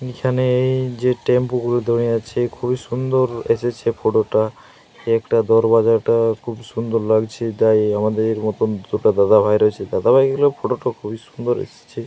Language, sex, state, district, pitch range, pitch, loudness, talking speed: Bengali, male, Jharkhand, Jamtara, 115-125 Hz, 120 Hz, -18 LUFS, 160 wpm